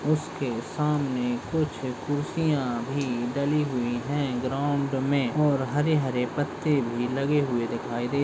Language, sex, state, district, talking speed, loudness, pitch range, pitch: Hindi, male, Uttarakhand, Tehri Garhwal, 140 wpm, -27 LUFS, 125-145 Hz, 140 Hz